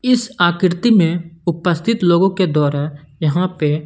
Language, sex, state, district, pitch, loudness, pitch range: Hindi, male, Punjab, Kapurthala, 175 Hz, -16 LUFS, 155-190 Hz